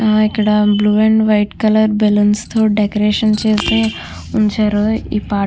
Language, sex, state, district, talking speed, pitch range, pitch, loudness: Telugu, female, Andhra Pradesh, Krishna, 155 wpm, 205-215 Hz, 210 Hz, -14 LUFS